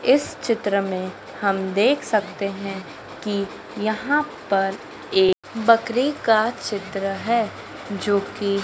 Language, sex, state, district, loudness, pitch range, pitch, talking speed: Hindi, female, Madhya Pradesh, Dhar, -22 LUFS, 195-230 Hz, 205 Hz, 120 wpm